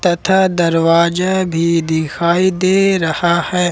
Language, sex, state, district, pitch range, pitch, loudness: Hindi, male, Jharkhand, Ranchi, 165-185 Hz, 175 Hz, -14 LUFS